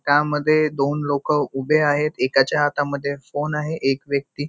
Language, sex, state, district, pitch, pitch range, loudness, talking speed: Marathi, male, Maharashtra, Nagpur, 145 Hz, 140-150 Hz, -21 LUFS, 175 wpm